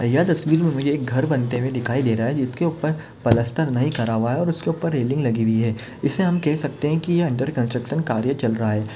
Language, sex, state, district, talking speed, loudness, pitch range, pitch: Hindi, male, Maharashtra, Chandrapur, 260 wpm, -22 LUFS, 120-155 Hz, 135 Hz